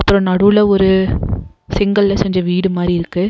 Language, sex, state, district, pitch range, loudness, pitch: Tamil, female, Tamil Nadu, Nilgiris, 175-200 Hz, -14 LUFS, 190 Hz